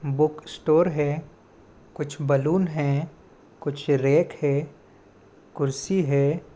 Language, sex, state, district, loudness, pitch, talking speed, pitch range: Hindi, male, Chhattisgarh, Balrampur, -24 LUFS, 145 Hz, 100 wpm, 140-155 Hz